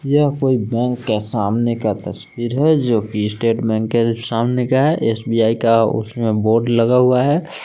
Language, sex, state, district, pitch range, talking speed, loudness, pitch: Hindi, male, Jharkhand, Palamu, 110-125 Hz, 180 wpm, -17 LUFS, 115 Hz